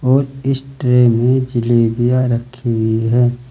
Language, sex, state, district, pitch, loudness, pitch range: Hindi, male, Uttar Pradesh, Saharanpur, 125 Hz, -15 LUFS, 120-130 Hz